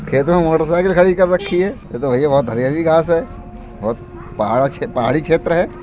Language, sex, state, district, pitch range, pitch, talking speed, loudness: Hindi, male, Uttar Pradesh, Budaun, 160-180 Hz, 165 Hz, 195 wpm, -16 LUFS